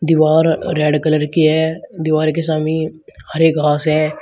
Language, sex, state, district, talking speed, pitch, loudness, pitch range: Hindi, male, Uttar Pradesh, Shamli, 155 wpm, 155 Hz, -16 LUFS, 155-160 Hz